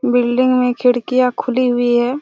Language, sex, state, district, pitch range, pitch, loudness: Hindi, female, Chhattisgarh, Raigarh, 245-255 Hz, 250 Hz, -15 LUFS